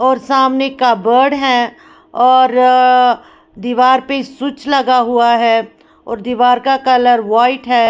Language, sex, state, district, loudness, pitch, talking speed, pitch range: Hindi, female, Bihar, Patna, -12 LUFS, 255 Hz, 130 wpm, 240-265 Hz